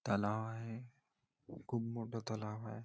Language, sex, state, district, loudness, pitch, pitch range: Marathi, male, Maharashtra, Nagpur, -42 LUFS, 115 Hz, 110-120 Hz